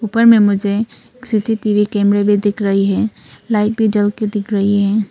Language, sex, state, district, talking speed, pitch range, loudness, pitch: Hindi, female, Arunachal Pradesh, Papum Pare, 190 wpm, 205-220 Hz, -15 LUFS, 210 Hz